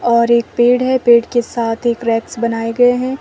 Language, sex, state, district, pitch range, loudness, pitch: Hindi, female, Himachal Pradesh, Shimla, 235-245 Hz, -14 LUFS, 235 Hz